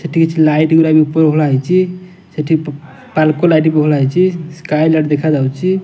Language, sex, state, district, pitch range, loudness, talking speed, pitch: Odia, male, Odisha, Nuapada, 150-165 Hz, -13 LUFS, 175 wpm, 155 Hz